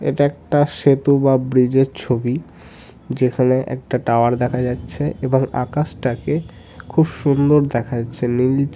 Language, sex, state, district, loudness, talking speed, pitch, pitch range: Bengali, male, West Bengal, Jhargram, -18 LUFS, 145 wpm, 130 Hz, 125-140 Hz